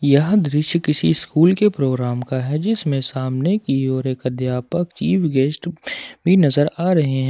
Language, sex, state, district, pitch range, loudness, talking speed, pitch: Hindi, male, Jharkhand, Ranchi, 130-175 Hz, -19 LUFS, 175 wpm, 150 Hz